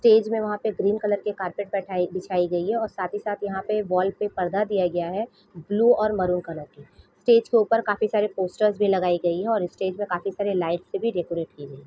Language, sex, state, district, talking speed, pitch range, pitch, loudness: Hindi, female, Jharkhand, Sahebganj, 255 wpm, 180-210 Hz, 195 Hz, -24 LUFS